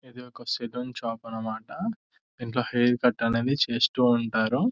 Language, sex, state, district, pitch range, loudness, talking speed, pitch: Telugu, male, Telangana, Nalgonda, 115-125 Hz, -26 LUFS, 115 wpm, 120 Hz